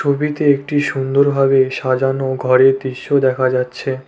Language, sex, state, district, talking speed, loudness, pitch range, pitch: Bengali, male, West Bengal, Cooch Behar, 115 wpm, -16 LUFS, 130-140 Hz, 135 Hz